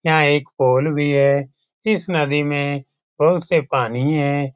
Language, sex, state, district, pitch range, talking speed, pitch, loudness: Hindi, male, Bihar, Lakhisarai, 140-150 Hz, 160 wpm, 145 Hz, -18 LUFS